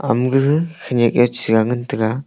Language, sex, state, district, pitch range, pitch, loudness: Wancho, male, Arunachal Pradesh, Longding, 120-135 Hz, 120 Hz, -16 LUFS